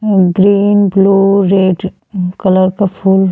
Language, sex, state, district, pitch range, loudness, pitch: Bhojpuri, female, Uttar Pradesh, Ghazipur, 185-200 Hz, -11 LUFS, 195 Hz